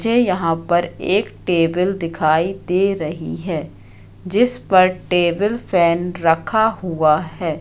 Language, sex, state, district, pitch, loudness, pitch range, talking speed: Hindi, female, Madhya Pradesh, Katni, 175 Hz, -18 LUFS, 165-195 Hz, 125 wpm